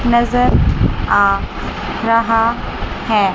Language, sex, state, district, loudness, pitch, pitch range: Hindi, female, Chandigarh, Chandigarh, -16 LUFS, 230 Hz, 210-235 Hz